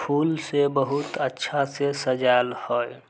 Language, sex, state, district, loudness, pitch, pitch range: Maithili, male, Bihar, Samastipur, -24 LUFS, 140 Hz, 130-145 Hz